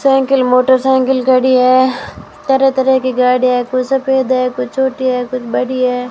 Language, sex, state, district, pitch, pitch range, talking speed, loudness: Hindi, female, Rajasthan, Bikaner, 255 Hz, 255-265 Hz, 175 wpm, -13 LUFS